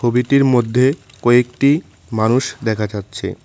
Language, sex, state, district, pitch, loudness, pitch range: Bengali, male, West Bengal, Cooch Behar, 120 Hz, -17 LUFS, 110-130 Hz